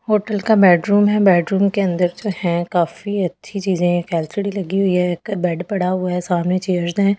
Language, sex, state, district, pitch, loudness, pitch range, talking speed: Hindi, female, Delhi, New Delhi, 185 Hz, -18 LUFS, 175-200 Hz, 225 wpm